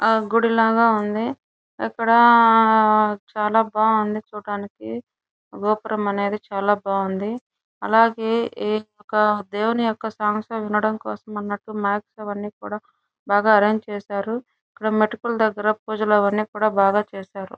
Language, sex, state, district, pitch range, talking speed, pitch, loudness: Telugu, female, Andhra Pradesh, Chittoor, 205-220 Hz, 115 wpm, 215 Hz, -20 LUFS